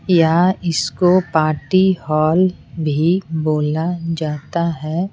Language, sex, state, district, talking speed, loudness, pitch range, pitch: Hindi, female, Bihar, Patna, 95 wpm, -17 LUFS, 155-180 Hz, 165 Hz